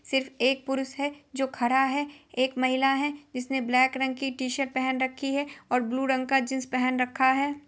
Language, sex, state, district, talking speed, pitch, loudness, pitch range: Hindi, female, Bihar, Gopalganj, 205 wpm, 265 Hz, -27 LUFS, 260-275 Hz